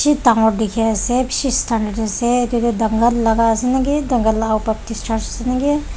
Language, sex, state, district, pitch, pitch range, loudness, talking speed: Nagamese, female, Nagaland, Dimapur, 230 Hz, 220-250 Hz, -17 LUFS, 220 wpm